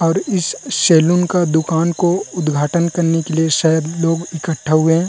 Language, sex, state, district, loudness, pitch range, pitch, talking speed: Chhattisgarhi, male, Chhattisgarh, Rajnandgaon, -16 LUFS, 160-175 Hz, 165 Hz, 175 wpm